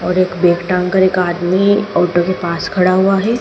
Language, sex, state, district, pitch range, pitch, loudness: Hindi, male, Madhya Pradesh, Dhar, 180-190 Hz, 180 Hz, -14 LUFS